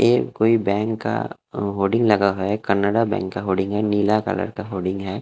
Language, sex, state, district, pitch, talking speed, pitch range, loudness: Hindi, male, Haryana, Rohtak, 100 Hz, 195 wpm, 100-110 Hz, -21 LUFS